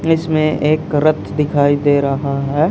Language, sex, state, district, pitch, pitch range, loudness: Hindi, male, Haryana, Charkhi Dadri, 150 Hz, 145-155 Hz, -16 LUFS